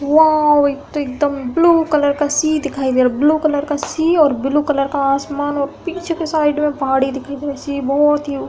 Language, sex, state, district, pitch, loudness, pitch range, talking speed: Hindi, female, Uttar Pradesh, Hamirpur, 290 Hz, -16 LUFS, 280-305 Hz, 240 wpm